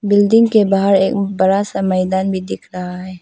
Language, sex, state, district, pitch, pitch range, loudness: Hindi, female, Arunachal Pradesh, Papum Pare, 195 Hz, 185-200 Hz, -15 LUFS